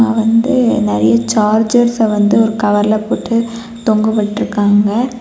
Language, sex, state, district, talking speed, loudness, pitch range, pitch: Tamil, female, Tamil Nadu, Kanyakumari, 90 wpm, -13 LUFS, 205-230 Hz, 220 Hz